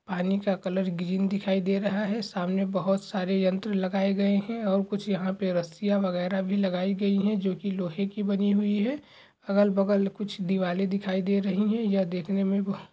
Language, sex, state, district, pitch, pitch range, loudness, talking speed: Hindi, male, Uttar Pradesh, Hamirpur, 195 Hz, 190-200 Hz, -27 LUFS, 200 wpm